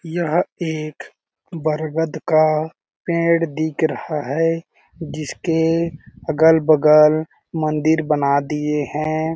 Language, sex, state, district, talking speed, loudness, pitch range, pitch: Hindi, male, Chhattisgarh, Balrampur, 90 wpm, -19 LUFS, 150-165 Hz, 155 Hz